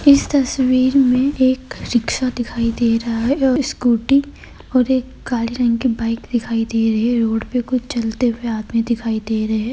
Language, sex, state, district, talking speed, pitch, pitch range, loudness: Hindi, female, Uttar Pradesh, Etah, 190 wpm, 240 Hz, 230-255 Hz, -18 LUFS